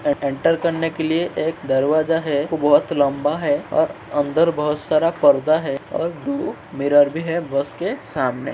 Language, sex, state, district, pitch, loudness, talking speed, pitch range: Hindi, male, Uttar Pradesh, Jyotiba Phule Nagar, 155 Hz, -20 LUFS, 190 wpm, 145-165 Hz